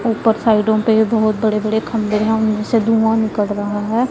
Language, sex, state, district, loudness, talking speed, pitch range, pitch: Hindi, female, Punjab, Pathankot, -16 LUFS, 205 wpm, 215-225 Hz, 220 Hz